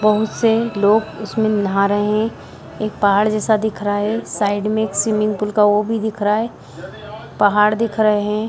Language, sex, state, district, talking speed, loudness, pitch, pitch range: Hindi, female, Bihar, Jahanabad, 190 wpm, -18 LUFS, 215 Hz, 205-220 Hz